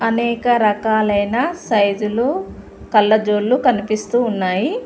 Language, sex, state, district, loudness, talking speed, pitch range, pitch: Telugu, female, Telangana, Mahabubabad, -17 LUFS, 75 wpm, 210-245 Hz, 220 Hz